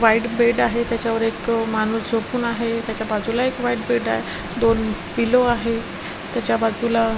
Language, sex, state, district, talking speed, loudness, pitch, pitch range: Marathi, female, Maharashtra, Washim, 175 wpm, -21 LUFS, 230 Hz, 225-235 Hz